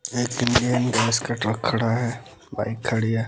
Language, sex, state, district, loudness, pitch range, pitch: Hindi, male, Bihar, West Champaran, -23 LUFS, 115-125 Hz, 120 Hz